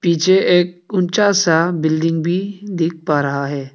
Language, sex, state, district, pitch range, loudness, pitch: Hindi, male, Arunachal Pradesh, Papum Pare, 160-185 Hz, -16 LUFS, 170 Hz